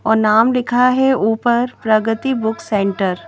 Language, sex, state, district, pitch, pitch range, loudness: Hindi, female, Madhya Pradesh, Bhopal, 225 Hz, 215-250 Hz, -16 LUFS